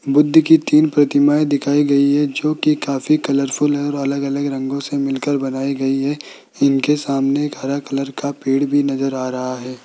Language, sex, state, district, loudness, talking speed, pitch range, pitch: Hindi, male, Rajasthan, Jaipur, -17 LUFS, 190 wpm, 135-145 Hz, 140 Hz